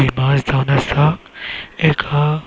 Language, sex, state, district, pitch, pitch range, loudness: Konkani, male, Goa, North and South Goa, 140 Hz, 135-150 Hz, -17 LUFS